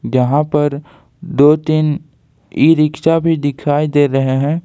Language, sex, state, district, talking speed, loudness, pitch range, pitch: Hindi, male, Jharkhand, Ranchi, 140 wpm, -14 LUFS, 140-155 Hz, 150 Hz